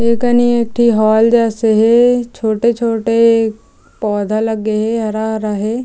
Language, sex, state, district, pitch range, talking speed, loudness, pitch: Chhattisgarhi, female, Chhattisgarh, Jashpur, 220-235 Hz, 135 wpm, -14 LUFS, 225 Hz